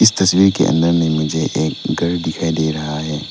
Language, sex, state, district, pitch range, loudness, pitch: Hindi, male, Arunachal Pradesh, Lower Dibang Valley, 80-85 Hz, -17 LUFS, 80 Hz